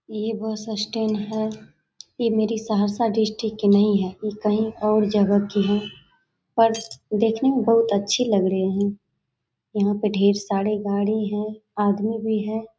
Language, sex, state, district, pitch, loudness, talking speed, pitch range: Hindi, female, Bihar, Saharsa, 215 Hz, -22 LUFS, 165 wpm, 205-220 Hz